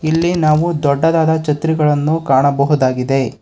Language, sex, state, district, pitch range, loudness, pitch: Kannada, male, Karnataka, Bangalore, 140-160 Hz, -14 LUFS, 150 Hz